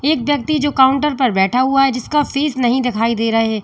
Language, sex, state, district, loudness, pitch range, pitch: Hindi, female, Uttar Pradesh, Lalitpur, -16 LUFS, 240-290 Hz, 265 Hz